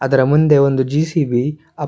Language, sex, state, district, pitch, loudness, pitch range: Kannada, male, Karnataka, Shimoga, 145 Hz, -15 LUFS, 135-150 Hz